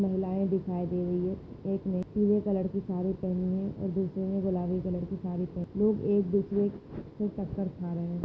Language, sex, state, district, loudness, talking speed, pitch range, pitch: Hindi, female, Maharashtra, Nagpur, -31 LUFS, 210 wpm, 180-195 Hz, 190 Hz